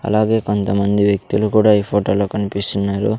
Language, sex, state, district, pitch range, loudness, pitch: Telugu, male, Andhra Pradesh, Sri Satya Sai, 100-105 Hz, -17 LUFS, 100 Hz